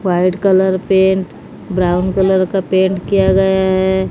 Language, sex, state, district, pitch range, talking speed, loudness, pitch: Hindi, female, Odisha, Malkangiri, 185-190 Hz, 145 wpm, -14 LUFS, 190 Hz